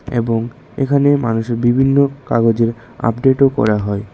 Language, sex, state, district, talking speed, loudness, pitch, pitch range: Bengali, male, Tripura, West Tripura, 130 wpm, -16 LUFS, 120 Hz, 115-135 Hz